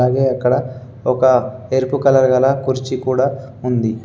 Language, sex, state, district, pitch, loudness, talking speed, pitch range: Telugu, male, Telangana, Adilabad, 130 Hz, -16 LUFS, 135 wpm, 125-130 Hz